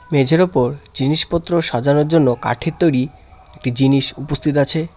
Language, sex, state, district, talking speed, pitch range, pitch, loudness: Bengali, male, West Bengal, Cooch Behar, 135 wpm, 135-160 Hz, 145 Hz, -16 LUFS